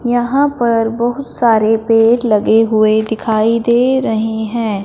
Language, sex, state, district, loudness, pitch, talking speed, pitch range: Hindi, female, Punjab, Fazilka, -13 LUFS, 225 Hz, 135 wpm, 220-240 Hz